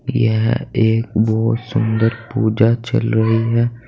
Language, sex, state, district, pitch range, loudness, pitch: Hindi, male, Uttar Pradesh, Saharanpur, 110-115 Hz, -17 LUFS, 115 Hz